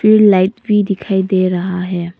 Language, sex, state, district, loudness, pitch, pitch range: Hindi, female, Arunachal Pradesh, Papum Pare, -14 LUFS, 190 Hz, 185-210 Hz